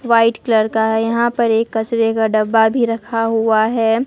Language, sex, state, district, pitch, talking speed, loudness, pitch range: Hindi, female, Bihar, Katihar, 225 Hz, 190 wpm, -16 LUFS, 220-230 Hz